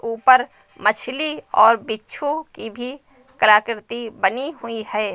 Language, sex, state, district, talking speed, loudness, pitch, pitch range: Hindi, female, Uttar Pradesh, Lucknow, 130 wpm, -19 LUFS, 230 Hz, 220-265 Hz